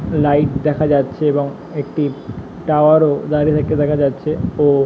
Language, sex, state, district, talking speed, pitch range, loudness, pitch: Bengali, male, West Bengal, North 24 Parganas, 160 wpm, 145-150 Hz, -16 LUFS, 150 Hz